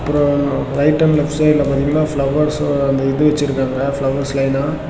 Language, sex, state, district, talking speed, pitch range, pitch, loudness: Tamil, male, Tamil Nadu, Namakkal, 160 wpm, 140-150 Hz, 145 Hz, -16 LUFS